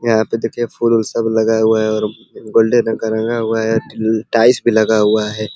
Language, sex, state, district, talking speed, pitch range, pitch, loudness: Hindi, male, Uttar Pradesh, Ghazipur, 225 wpm, 110-115 Hz, 110 Hz, -15 LUFS